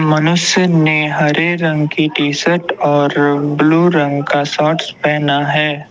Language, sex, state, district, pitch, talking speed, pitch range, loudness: Hindi, male, Assam, Kamrup Metropolitan, 150 Hz, 130 wpm, 145-160 Hz, -13 LUFS